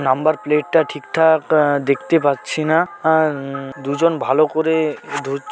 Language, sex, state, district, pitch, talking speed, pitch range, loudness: Bengali, female, West Bengal, Paschim Medinipur, 155 Hz, 140 wpm, 140-160 Hz, -18 LUFS